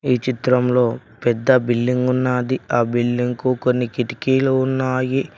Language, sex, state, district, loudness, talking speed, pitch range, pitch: Telugu, male, Telangana, Mahabubabad, -19 LUFS, 120 wpm, 120-130 Hz, 125 Hz